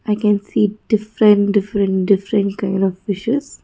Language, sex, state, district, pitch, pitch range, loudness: English, female, Karnataka, Bangalore, 205 Hz, 200-215 Hz, -17 LUFS